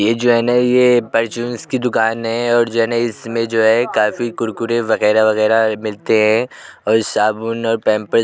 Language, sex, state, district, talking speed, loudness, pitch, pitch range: Hindi, male, Uttar Pradesh, Jyotiba Phule Nagar, 190 wpm, -16 LUFS, 115 Hz, 110-120 Hz